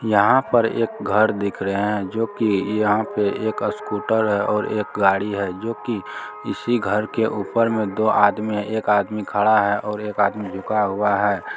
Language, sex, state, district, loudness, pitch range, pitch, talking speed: Maithili, male, Bihar, Supaul, -21 LUFS, 100-110 Hz, 105 Hz, 200 wpm